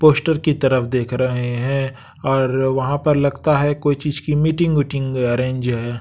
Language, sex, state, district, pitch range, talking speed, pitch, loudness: Hindi, male, Bihar, West Champaran, 130-150 Hz, 180 wpm, 135 Hz, -19 LUFS